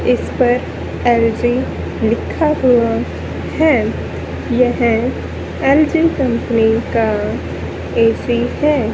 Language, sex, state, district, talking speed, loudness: Hindi, male, Haryana, Charkhi Dadri, 75 wpm, -16 LUFS